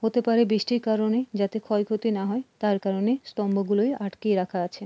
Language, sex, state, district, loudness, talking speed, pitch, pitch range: Bengali, female, West Bengal, Purulia, -25 LUFS, 185 wpm, 215 Hz, 200-230 Hz